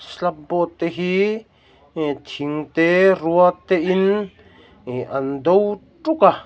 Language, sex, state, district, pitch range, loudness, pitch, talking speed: Mizo, male, Mizoram, Aizawl, 145-190 Hz, -19 LUFS, 170 Hz, 140 wpm